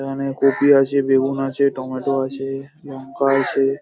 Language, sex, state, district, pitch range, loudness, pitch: Bengali, male, West Bengal, Paschim Medinipur, 135-140 Hz, -19 LUFS, 135 Hz